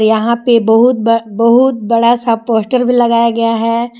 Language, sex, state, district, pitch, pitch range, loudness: Hindi, female, Jharkhand, Garhwa, 230 Hz, 230-240 Hz, -11 LUFS